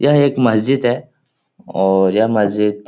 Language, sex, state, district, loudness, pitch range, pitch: Hindi, male, Uttar Pradesh, Etah, -15 LUFS, 105-135 Hz, 110 Hz